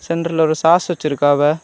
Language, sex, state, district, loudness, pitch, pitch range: Tamil, male, Tamil Nadu, Kanyakumari, -16 LUFS, 160 Hz, 150-170 Hz